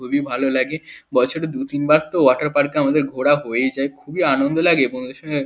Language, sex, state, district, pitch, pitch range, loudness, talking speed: Bengali, male, West Bengal, Kolkata, 145 Hz, 130-150 Hz, -19 LUFS, 195 wpm